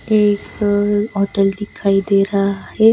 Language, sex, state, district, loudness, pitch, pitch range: Hindi, female, Bihar, West Champaran, -17 LUFS, 205 Hz, 195-205 Hz